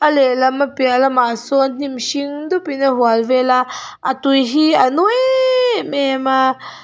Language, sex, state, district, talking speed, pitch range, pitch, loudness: Mizo, female, Mizoram, Aizawl, 185 wpm, 255-295 Hz, 270 Hz, -15 LUFS